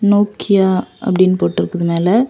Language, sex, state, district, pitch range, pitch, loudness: Tamil, female, Tamil Nadu, Kanyakumari, 185-205 Hz, 190 Hz, -15 LUFS